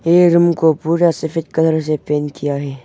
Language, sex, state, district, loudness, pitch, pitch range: Hindi, male, Arunachal Pradesh, Longding, -16 LUFS, 160 Hz, 150-170 Hz